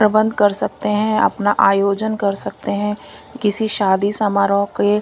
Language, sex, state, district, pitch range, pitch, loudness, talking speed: Hindi, female, Punjab, Kapurthala, 200-215 Hz, 205 Hz, -17 LUFS, 155 wpm